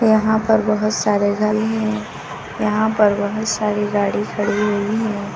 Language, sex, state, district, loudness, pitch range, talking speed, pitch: Hindi, female, Uttar Pradesh, Lucknow, -18 LUFS, 205-220 Hz, 145 wpm, 210 Hz